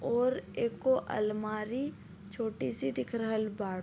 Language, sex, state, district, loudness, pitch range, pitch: Bhojpuri, female, Uttar Pradesh, Deoria, -33 LUFS, 195-235 Hz, 215 Hz